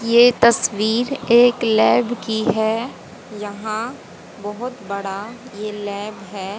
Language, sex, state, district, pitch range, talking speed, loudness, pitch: Hindi, female, Haryana, Rohtak, 205-240 Hz, 110 wpm, -19 LUFS, 220 Hz